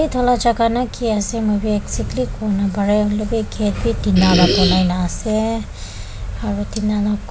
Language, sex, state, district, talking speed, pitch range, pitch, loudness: Nagamese, female, Nagaland, Dimapur, 180 wpm, 180-220 Hz, 210 Hz, -18 LUFS